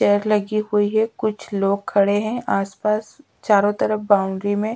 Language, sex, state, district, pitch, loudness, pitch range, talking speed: Hindi, female, Bihar, Patna, 210 Hz, -20 LUFS, 200-215 Hz, 165 wpm